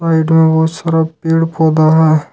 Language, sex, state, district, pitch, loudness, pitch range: Hindi, male, Jharkhand, Ranchi, 160 Hz, -12 LUFS, 160-165 Hz